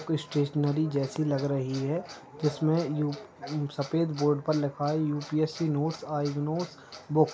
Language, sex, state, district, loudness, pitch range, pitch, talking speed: Hindi, male, Uttar Pradesh, Etah, -29 LUFS, 145-155 Hz, 150 Hz, 140 wpm